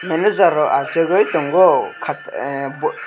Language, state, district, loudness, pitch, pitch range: Kokborok, Tripura, West Tripura, -17 LUFS, 165 Hz, 150-190 Hz